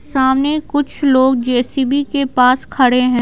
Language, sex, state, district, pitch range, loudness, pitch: Hindi, female, Bihar, Patna, 255-280 Hz, -14 LUFS, 265 Hz